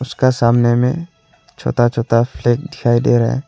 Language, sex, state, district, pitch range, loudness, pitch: Hindi, male, Arunachal Pradesh, Longding, 120-130 Hz, -16 LUFS, 120 Hz